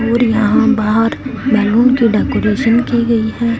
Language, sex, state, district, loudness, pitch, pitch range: Hindi, female, Punjab, Fazilka, -13 LUFS, 230 Hz, 225-240 Hz